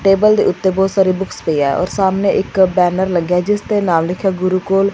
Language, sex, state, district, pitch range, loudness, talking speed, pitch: Punjabi, female, Punjab, Fazilka, 180-195 Hz, -15 LUFS, 245 wpm, 190 Hz